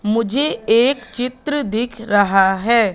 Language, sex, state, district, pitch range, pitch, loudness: Hindi, female, Madhya Pradesh, Katni, 210-250 Hz, 230 Hz, -17 LUFS